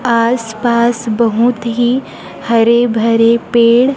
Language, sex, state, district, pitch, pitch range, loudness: Hindi, female, Chhattisgarh, Raipur, 235 Hz, 230-240 Hz, -12 LUFS